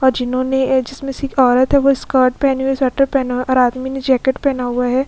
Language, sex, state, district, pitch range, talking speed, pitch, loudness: Hindi, female, Uttar Pradesh, Etah, 255-270 Hz, 295 wpm, 260 Hz, -16 LUFS